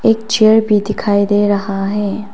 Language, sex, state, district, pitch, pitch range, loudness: Hindi, female, Arunachal Pradesh, Papum Pare, 205 Hz, 205-215 Hz, -14 LUFS